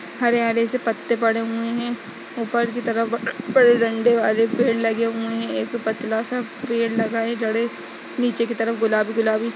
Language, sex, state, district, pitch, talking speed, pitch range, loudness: Hindi, female, Uttarakhand, Uttarkashi, 230 Hz, 175 wpm, 225-235 Hz, -21 LUFS